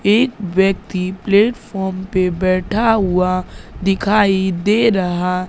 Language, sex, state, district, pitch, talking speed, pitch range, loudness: Hindi, female, Madhya Pradesh, Katni, 190 Hz, 100 wpm, 185-210 Hz, -16 LUFS